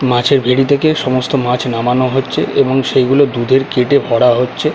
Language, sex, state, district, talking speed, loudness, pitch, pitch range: Bengali, male, West Bengal, Kolkata, 175 wpm, -13 LUFS, 130 Hz, 125-140 Hz